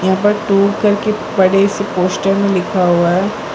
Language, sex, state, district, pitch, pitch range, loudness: Hindi, female, Gujarat, Valsad, 195 Hz, 185-205 Hz, -14 LUFS